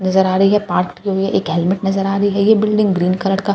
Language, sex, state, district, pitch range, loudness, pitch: Hindi, female, Bihar, Katihar, 185-200 Hz, -16 LUFS, 195 Hz